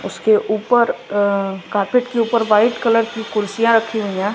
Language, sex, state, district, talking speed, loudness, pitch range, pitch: Hindi, male, Bihar, West Champaran, 180 wpm, -17 LUFS, 205-230 Hz, 215 Hz